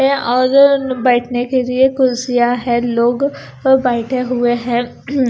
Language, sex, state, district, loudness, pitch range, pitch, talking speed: Hindi, female, Punjab, Kapurthala, -15 LUFS, 240-265 Hz, 250 Hz, 125 wpm